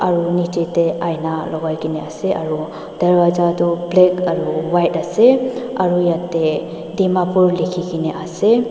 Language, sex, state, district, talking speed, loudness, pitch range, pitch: Nagamese, female, Nagaland, Dimapur, 130 wpm, -17 LUFS, 160-180 Hz, 175 Hz